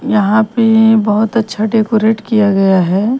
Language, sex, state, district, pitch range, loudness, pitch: Hindi, female, Himachal Pradesh, Shimla, 210-225 Hz, -12 LUFS, 220 Hz